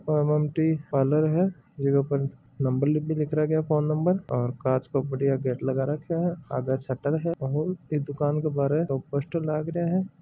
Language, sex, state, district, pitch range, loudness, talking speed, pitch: Marwari, male, Rajasthan, Nagaur, 135-160 Hz, -26 LUFS, 170 wpm, 150 Hz